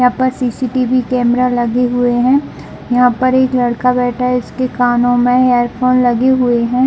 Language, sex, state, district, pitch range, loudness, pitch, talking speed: Hindi, female, Chhattisgarh, Bilaspur, 245-255 Hz, -13 LUFS, 250 Hz, 190 wpm